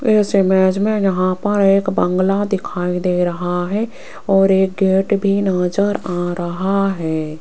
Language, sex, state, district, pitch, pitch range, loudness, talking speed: Hindi, female, Rajasthan, Jaipur, 190 Hz, 180-200 Hz, -17 LUFS, 155 wpm